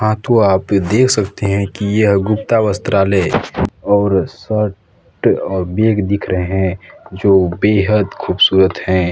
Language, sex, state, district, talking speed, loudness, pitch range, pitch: Hindi, male, Chhattisgarh, Balrampur, 145 wpm, -15 LUFS, 95-105 Hz, 100 Hz